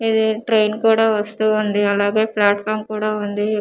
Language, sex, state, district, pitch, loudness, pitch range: Telugu, female, Andhra Pradesh, Manyam, 215 Hz, -18 LUFS, 205-220 Hz